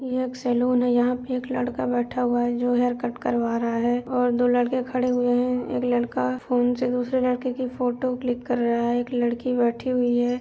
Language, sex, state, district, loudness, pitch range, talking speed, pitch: Hindi, female, Uttar Pradesh, Jyotiba Phule Nagar, -24 LUFS, 240-250 Hz, 230 wpm, 245 Hz